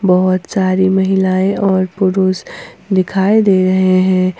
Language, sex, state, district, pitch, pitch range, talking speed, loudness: Hindi, female, Jharkhand, Ranchi, 190 Hz, 185-190 Hz, 125 wpm, -13 LUFS